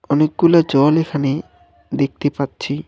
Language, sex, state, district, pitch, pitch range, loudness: Bengali, male, West Bengal, Alipurduar, 145 Hz, 140-155 Hz, -17 LUFS